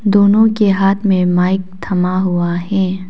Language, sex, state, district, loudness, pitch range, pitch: Hindi, female, Arunachal Pradesh, Papum Pare, -14 LUFS, 180-200 Hz, 190 Hz